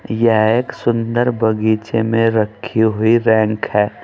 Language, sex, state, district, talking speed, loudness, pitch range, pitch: Hindi, male, Uttar Pradesh, Saharanpur, 135 wpm, -16 LUFS, 110-115 Hz, 110 Hz